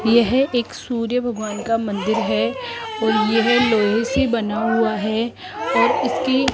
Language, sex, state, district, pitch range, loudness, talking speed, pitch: Hindi, female, Rajasthan, Jaipur, 220-250 Hz, -20 LUFS, 155 wpm, 230 Hz